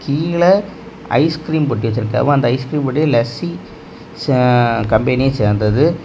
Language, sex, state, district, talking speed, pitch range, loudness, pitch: Tamil, male, Tamil Nadu, Kanyakumari, 110 wpm, 120-155 Hz, -15 LUFS, 135 Hz